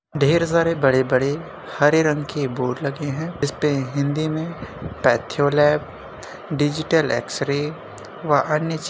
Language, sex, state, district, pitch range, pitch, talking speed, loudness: Hindi, male, Uttar Pradesh, Jyotiba Phule Nagar, 140-160 Hz, 150 Hz, 135 wpm, -21 LUFS